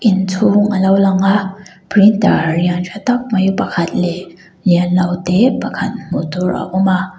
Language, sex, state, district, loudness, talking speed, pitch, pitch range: Mizo, female, Mizoram, Aizawl, -14 LUFS, 160 wpm, 190 Hz, 180-205 Hz